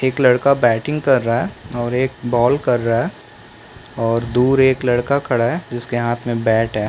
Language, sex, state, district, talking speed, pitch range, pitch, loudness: Hindi, male, Chhattisgarh, Balrampur, 200 wpm, 115-130 Hz, 120 Hz, -17 LUFS